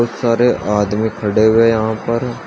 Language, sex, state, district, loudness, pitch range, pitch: Hindi, male, Uttar Pradesh, Shamli, -15 LUFS, 110-115 Hz, 110 Hz